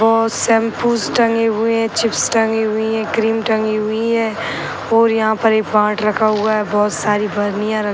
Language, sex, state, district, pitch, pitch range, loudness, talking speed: Hindi, female, Uttar Pradesh, Gorakhpur, 220 Hz, 215-225 Hz, -16 LUFS, 175 wpm